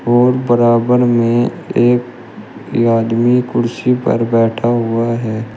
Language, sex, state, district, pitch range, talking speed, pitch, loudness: Hindi, male, Uttar Pradesh, Shamli, 115-120 Hz, 110 wpm, 120 Hz, -14 LUFS